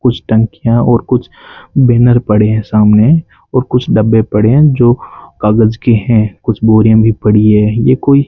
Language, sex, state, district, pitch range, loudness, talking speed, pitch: Hindi, male, Rajasthan, Bikaner, 110-125 Hz, -10 LUFS, 180 wpm, 115 Hz